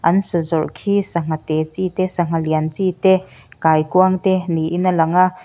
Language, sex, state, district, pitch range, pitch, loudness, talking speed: Mizo, female, Mizoram, Aizawl, 160-185 Hz, 175 Hz, -18 LUFS, 200 wpm